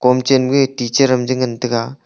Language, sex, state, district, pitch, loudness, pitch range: Wancho, male, Arunachal Pradesh, Longding, 130 Hz, -15 LUFS, 120-135 Hz